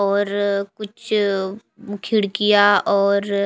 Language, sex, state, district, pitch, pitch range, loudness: Hindi, female, Chhattisgarh, Raipur, 205 Hz, 200-210 Hz, -19 LUFS